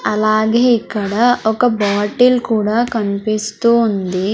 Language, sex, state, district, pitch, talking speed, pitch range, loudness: Telugu, female, Andhra Pradesh, Sri Satya Sai, 215 Hz, 95 wpm, 210-235 Hz, -15 LUFS